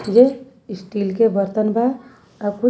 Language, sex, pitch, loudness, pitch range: Sadri, female, 225 Hz, -19 LUFS, 205-245 Hz